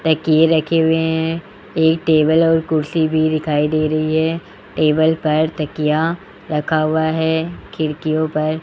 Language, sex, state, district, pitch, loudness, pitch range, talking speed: Hindi, male, Rajasthan, Jaipur, 160 Hz, -17 LUFS, 155-160 Hz, 155 wpm